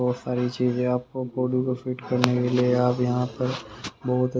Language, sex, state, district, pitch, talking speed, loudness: Hindi, male, Haryana, Rohtak, 125 Hz, 190 wpm, -25 LUFS